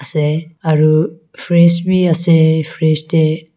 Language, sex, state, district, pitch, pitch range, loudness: Nagamese, female, Nagaland, Kohima, 160 Hz, 155-170 Hz, -13 LUFS